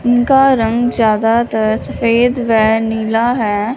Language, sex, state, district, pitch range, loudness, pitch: Hindi, female, Punjab, Fazilka, 220-245 Hz, -13 LUFS, 230 Hz